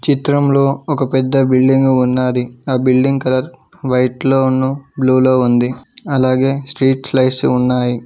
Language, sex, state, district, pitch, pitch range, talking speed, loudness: Telugu, male, Telangana, Mahabubabad, 130 Hz, 130-135 Hz, 125 wpm, -14 LUFS